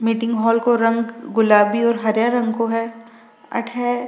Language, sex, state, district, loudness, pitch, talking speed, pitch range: Rajasthani, female, Rajasthan, Nagaur, -18 LUFS, 230 Hz, 175 wpm, 225-235 Hz